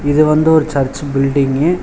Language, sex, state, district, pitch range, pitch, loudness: Tamil, male, Tamil Nadu, Chennai, 140-155 Hz, 145 Hz, -14 LUFS